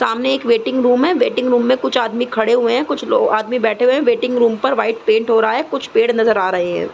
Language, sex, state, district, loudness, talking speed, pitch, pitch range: Hindi, female, Uttar Pradesh, Deoria, -16 LUFS, 285 wpm, 240 Hz, 225-255 Hz